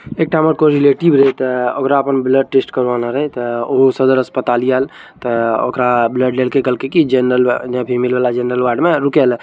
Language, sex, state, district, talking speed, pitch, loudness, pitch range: Maithili, male, Bihar, Araria, 205 wpm, 130 Hz, -14 LUFS, 125-135 Hz